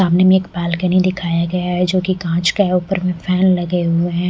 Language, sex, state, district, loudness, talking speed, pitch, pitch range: Hindi, female, Odisha, Malkangiri, -16 LUFS, 250 wpm, 180 Hz, 175-185 Hz